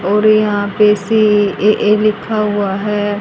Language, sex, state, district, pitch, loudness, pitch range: Hindi, female, Haryana, Rohtak, 210 Hz, -13 LUFS, 205-215 Hz